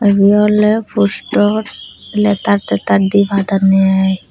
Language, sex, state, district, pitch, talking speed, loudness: Chakma, female, Tripura, Unakoti, 195 Hz, 95 wpm, -13 LUFS